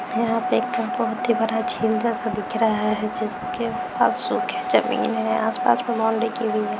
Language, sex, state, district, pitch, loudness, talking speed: Hindi, female, Bihar, Jahanabad, 230 Hz, -22 LUFS, 175 wpm